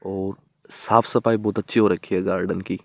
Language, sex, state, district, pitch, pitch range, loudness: Hindi, male, Rajasthan, Jaipur, 105 Hz, 95-115 Hz, -22 LUFS